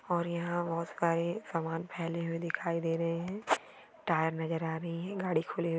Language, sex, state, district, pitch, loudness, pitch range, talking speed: Hindi, female, Maharashtra, Aurangabad, 170 Hz, -34 LUFS, 165-170 Hz, 205 wpm